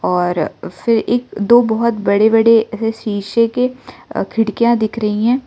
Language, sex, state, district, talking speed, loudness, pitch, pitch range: Hindi, male, Arunachal Pradesh, Lower Dibang Valley, 155 wpm, -15 LUFS, 225 Hz, 215-235 Hz